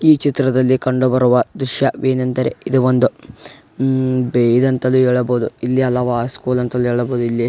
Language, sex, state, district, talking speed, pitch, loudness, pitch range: Kannada, male, Karnataka, Raichur, 120 wpm, 130 Hz, -16 LUFS, 125-130 Hz